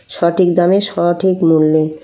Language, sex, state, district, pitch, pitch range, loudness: Bengali, female, West Bengal, Kolkata, 175 Hz, 160-185 Hz, -13 LUFS